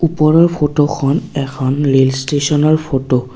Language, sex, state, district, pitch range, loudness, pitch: Assamese, male, Assam, Kamrup Metropolitan, 135-155 Hz, -14 LUFS, 145 Hz